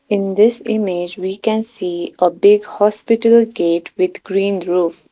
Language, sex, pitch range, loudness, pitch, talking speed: English, female, 180-220 Hz, -16 LUFS, 200 Hz, 150 wpm